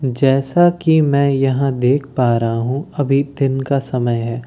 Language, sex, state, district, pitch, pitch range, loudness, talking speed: Hindi, male, Bihar, Katihar, 135 Hz, 125-140 Hz, -16 LUFS, 175 wpm